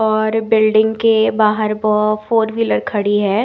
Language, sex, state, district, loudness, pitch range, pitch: Hindi, female, Himachal Pradesh, Shimla, -15 LUFS, 215-220 Hz, 215 Hz